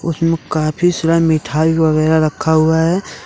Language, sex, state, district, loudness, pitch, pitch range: Hindi, male, Jharkhand, Deoghar, -15 LUFS, 160 Hz, 155-165 Hz